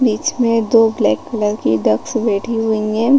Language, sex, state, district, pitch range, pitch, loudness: Hindi, female, Chhattisgarh, Rajnandgaon, 210-230 Hz, 225 Hz, -16 LUFS